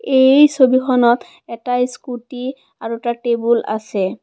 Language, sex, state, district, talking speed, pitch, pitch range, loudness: Assamese, female, Assam, Kamrup Metropolitan, 115 wpm, 245 Hz, 235-260 Hz, -16 LUFS